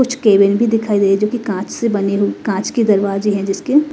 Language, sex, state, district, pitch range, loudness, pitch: Hindi, female, Himachal Pradesh, Shimla, 200-230 Hz, -15 LUFS, 205 Hz